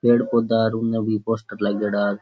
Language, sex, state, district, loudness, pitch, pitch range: Rajasthani, male, Rajasthan, Churu, -22 LUFS, 110 Hz, 105-115 Hz